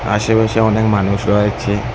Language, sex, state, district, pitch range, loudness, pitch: Bengali, female, West Bengal, Cooch Behar, 105-110 Hz, -15 LUFS, 105 Hz